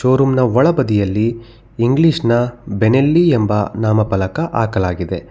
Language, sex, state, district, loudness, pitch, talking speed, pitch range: Kannada, male, Karnataka, Bangalore, -15 LUFS, 115 Hz, 125 wpm, 105-130 Hz